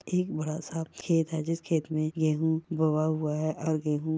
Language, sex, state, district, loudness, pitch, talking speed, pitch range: Hindi, female, Bihar, Bhagalpur, -29 LUFS, 160 Hz, 200 wpm, 155-160 Hz